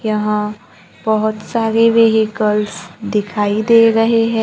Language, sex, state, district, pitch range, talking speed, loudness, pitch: Hindi, male, Maharashtra, Gondia, 210-225 Hz, 110 wpm, -15 LUFS, 215 Hz